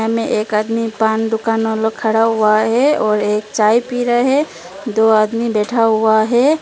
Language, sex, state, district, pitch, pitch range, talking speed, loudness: Hindi, female, Arunachal Pradesh, Lower Dibang Valley, 220 Hz, 215-230 Hz, 170 wpm, -15 LUFS